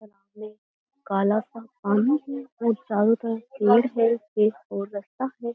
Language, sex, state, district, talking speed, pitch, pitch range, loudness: Hindi, female, Uttar Pradesh, Jyotiba Phule Nagar, 140 wpm, 225 Hz, 210-240 Hz, -24 LUFS